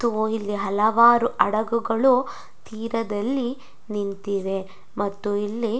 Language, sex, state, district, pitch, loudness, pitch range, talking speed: Kannada, female, Karnataka, Dakshina Kannada, 220 Hz, -23 LUFS, 205-235 Hz, 70 wpm